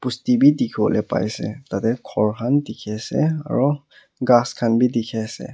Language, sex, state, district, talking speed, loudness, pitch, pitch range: Nagamese, male, Nagaland, Kohima, 175 wpm, -20 LUFS, 125 Hz, 115-145 Hz